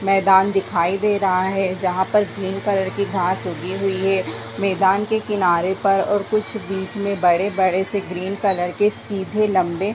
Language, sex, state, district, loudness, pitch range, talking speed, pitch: Hindi, female, Jharkhand, Jamtara, -20 LUFS, 185-200 Hz, 195 wpm, 195 Hz